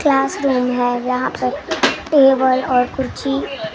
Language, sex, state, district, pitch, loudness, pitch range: Hindi, female, Maharashtra, Gondia, 255 Hz, -17 LUFS, 245-270 Hz